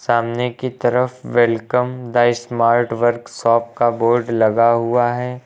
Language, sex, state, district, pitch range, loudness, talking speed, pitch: Hindi, male, Uttar Pradesh, Lucknow, 115-125 Hz, -17 LUFS, 130 wpm, 120 Hz